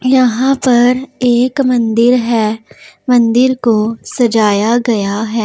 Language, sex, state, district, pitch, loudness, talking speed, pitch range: Hindi, female, Punjab, Pathankot, 240 Hz, -12 LUFS, 110 wpm, 225-255 Hz